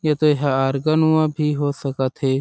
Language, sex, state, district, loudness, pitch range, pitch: Chhattisgarhi, male, Chhattisgarh, Sarguja, -19 LUFS, 135-155 Hz, 145 Hz